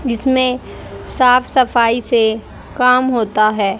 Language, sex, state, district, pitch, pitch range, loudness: Hindi, female, Haryana, Rohtak, 245 Hz, 225-255 Hz, -14 LUFS